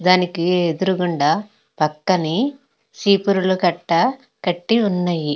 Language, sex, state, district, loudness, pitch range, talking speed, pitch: Telugu, female, Andhra Pradesh, Krishna, -19 LUFS, 170-200 Hz, 80 wpm, 185 Hz